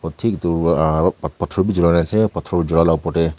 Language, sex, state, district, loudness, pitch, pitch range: Nagamese, male, Nagaland, Kohima, -18 LUFS, 85 Hz, 80-85 Hz